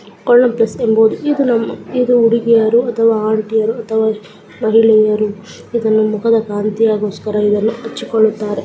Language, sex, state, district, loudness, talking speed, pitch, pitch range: Kannada, male, Karnataka, Raichur, -14 LUFS, 105 wpm, 220 Hz, 215-230 Hz